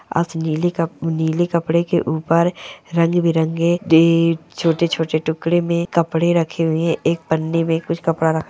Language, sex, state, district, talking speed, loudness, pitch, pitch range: Hindi, male, Goa, North and South Goa, 155 wpm, -18 LUFS, 165 Hz, 160-170 Hz